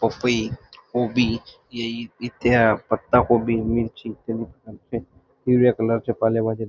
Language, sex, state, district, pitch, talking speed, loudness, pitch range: Marathi, male, Maharashtra, Dhule, 115 Hz, 105 wpm, -22 LUFS, 115-120 Hz